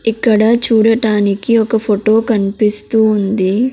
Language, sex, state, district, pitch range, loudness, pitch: Telugu, female, Andhra Pradesh, Sri Satya Sai, 210-225 Hz, -13 LUFS, 220 Hz